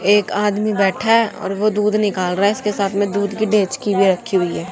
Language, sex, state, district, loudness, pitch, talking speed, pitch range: Hindi, female, Haryana, Jhajjar, -17 LUFS, 205 Hz, 255 wpm, 195-210 Hz